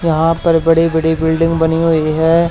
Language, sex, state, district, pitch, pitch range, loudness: Hindi, male, Haryana, Charkhi Dadri, 165 Hz, 160-165 Hz, -13 LUFS